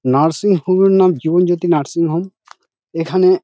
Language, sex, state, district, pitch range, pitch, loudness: Bengali, male, West Bengal, Dakshin Dinajpur, 165-185 Hz, 175 Hz, -15 LUFS